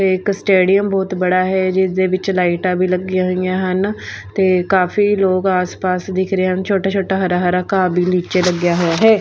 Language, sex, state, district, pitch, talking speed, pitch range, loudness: Punjabi, female, Punjab, Fazilka, 185 Hz, 180 wpm, 180-190 Hz, -16 LUFS